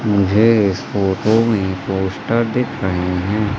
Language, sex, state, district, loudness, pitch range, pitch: Hindi, male, Madhya Pradesh, Katni, -17 LUFS, 95-110 Hz, 100 Hz